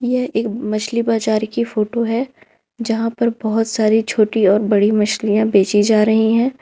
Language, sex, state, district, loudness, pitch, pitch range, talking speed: Hindi, female, Jharkhand, Ranchi, -17 LUFS, 220 Hz, 215-230 Hz, 170 wpm